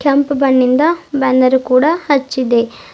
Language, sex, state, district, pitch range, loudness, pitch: Kannada, female, Karnataka, Bidar, 255-285 Hz, -13 LUFS, 270 Hz